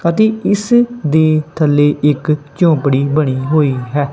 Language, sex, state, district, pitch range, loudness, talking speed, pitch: Punjabi, male, Punjab, Kapurthala, 145-170 Hz, -14 LUFS, 130 wpm, 150 Hz